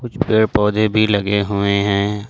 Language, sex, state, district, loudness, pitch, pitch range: Hindi, male, Jharkhand, Ranchi, -16 LUFS, 105 Hz, 100-110 Hz